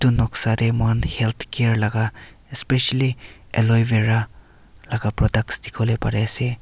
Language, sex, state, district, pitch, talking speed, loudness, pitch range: Nagamese, male, Nagaland, Kohima, 115 Hz, 120 wpm, -19 LUFS, 110-115 Hz